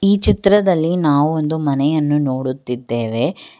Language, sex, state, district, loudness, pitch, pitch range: Kannada, female, Karnataka, Bangalore, -17 LUFS, 145 Hz, 130-165 Hz